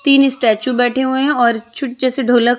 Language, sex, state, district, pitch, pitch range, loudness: Hindi, female, Chhattisgarh, Raipur, 250 Hz, 240-265 Hz, -15 LUFS